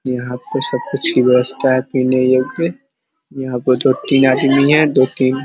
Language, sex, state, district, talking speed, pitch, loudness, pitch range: Hindi, male, Bihar, Vaishali, 210 wpm, 130 Hz, -15 LUFS, 130-140 Hz